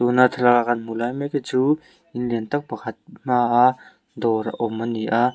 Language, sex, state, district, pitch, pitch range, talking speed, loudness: Mizo, male, Mizoram, Aizawl, 120 Hz, 115-130 Hz, 200 wpm, -21 LUFS